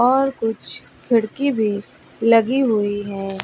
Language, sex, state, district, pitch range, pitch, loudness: Hindi, female, Bihar, West Champaran, 205-255 Hz, 225 Hz, -20 LUFS